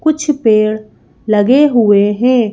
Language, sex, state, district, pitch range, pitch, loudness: Hindi, female, Madhya Pradesh, Bhopal, 215-270 Hz, 225 Hz, -11 LUFS